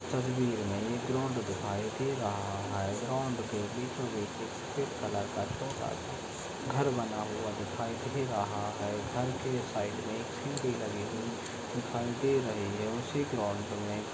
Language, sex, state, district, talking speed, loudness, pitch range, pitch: Hindi, male, Uttar Pradesh, Etah, 170 wpm, -35 LUFS, 105-130 Hz, 115 Hz